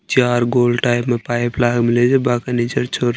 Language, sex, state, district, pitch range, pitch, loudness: Marwari, male, Rajasthan, Nagaur, 120-125 Hz, 120 Hz, -17 LUFS